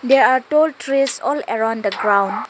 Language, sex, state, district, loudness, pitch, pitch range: English, female, Arunachal Pradesh, Lower Dibang Valley, -17 LUFS, 260 Hz, 215-275 Hz